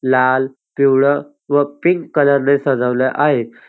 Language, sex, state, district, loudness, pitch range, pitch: Marathi, male, Maharashtra, Dhule, -16 LUFS, 130-145 Hz, 140 Hz